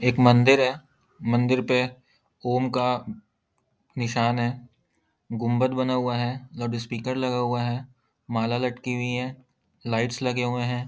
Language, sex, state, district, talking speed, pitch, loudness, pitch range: Hindi, male, Bihar, Lakhisarai, 145 wpm, 125 Hz, -25 LUFS, 120-125 Hz